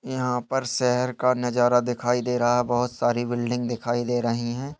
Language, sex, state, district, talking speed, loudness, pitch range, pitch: Hindi, male, Bihar, Darbhanga, 200 wpm, -24 LUFS, 120-125 Hz, 125 Hz